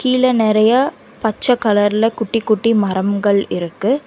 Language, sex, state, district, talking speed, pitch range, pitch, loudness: Tamil, female, Karnataka, Bangalore, 120 wpm, 205-245 Hz, 220 Hz, -16 LUFS